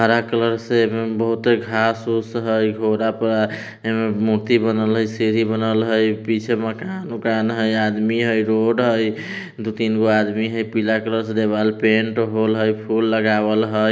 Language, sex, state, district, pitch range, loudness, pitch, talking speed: Hindi, male, Bihar, Vaishali, 110-115 Hz, -19 LUFS, 110 Hz, 160 wpm